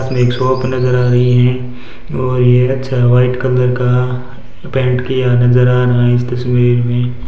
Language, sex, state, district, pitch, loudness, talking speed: Hindi, male, Rajasthan, Bikaner, 125 Hz, -13 LUFS, 175 wpm